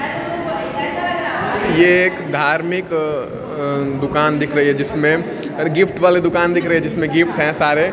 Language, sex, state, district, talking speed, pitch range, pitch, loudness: Hindi, female, Bihar, Kaimur, 150 wpm, 150-175 Hz, 160 Hz, -17 LUFS